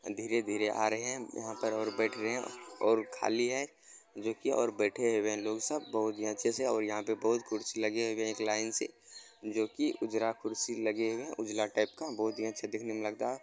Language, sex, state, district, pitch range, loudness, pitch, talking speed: Hindi, male, Bihar, Supaul, 110-115 Hz, -34 LUFS, 110 Hz, 235 wpm